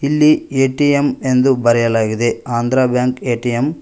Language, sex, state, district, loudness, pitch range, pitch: Kannada, male, Karnataka, Koppal, -15 LUFS, 120-140 Hz, 125 Hz